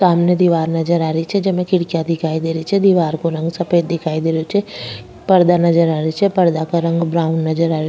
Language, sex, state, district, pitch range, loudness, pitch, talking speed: Rajasthani, female, Rajasthan, Nagaur, 160-175 Hz, -16 LUFS, 165 Hz, 245 wpm